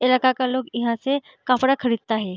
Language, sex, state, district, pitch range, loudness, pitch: Hindi, female, Bihar, Darbhanga, 235-260 Hz, -22 LUFS, 255 Hz